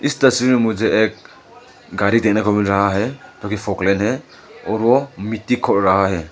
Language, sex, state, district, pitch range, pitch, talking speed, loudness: Hindi, male, Arunachal Pradesh, Lower Dibang Valley, 100-120 Hz, 105 Hz, 200 wpm, -17 LUFS